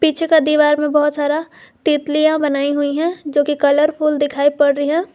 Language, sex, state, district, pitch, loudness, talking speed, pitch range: Hindi, female, Jharkhand, Garhwa, 295 Hz, -16 LUFS, 200 wpm, 290-310 Hz